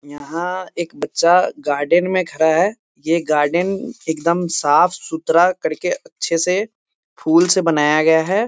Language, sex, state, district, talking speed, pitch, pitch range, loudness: Hindi, male, Bihar, Muzaffarpur, 140 wpm, 170 Hz, 160-185 Hz, -17 LUFS